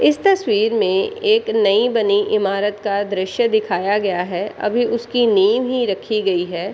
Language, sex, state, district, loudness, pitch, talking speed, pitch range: Hindi, female, Bihar, Madhepura, -18 LUFS, 220 Hz, 170 wpm, 200-330 Hz